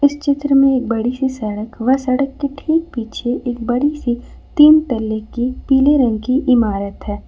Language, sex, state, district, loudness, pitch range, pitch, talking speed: Hindi, female, Jharkhand, Ranchi, -16 LUFS, 235-280 Hz, 255 Hz, 180 wpm